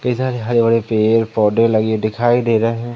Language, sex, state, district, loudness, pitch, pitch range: Hindi, male, Madhya Pradesh, Umaria, -16 LUFS, 115 Hz, 110-120 Hz